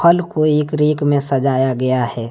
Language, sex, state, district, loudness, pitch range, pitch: Hindi, male, Jharkhand, Deoghar, -16 LUFS, 130-150 Hz, 145 Hz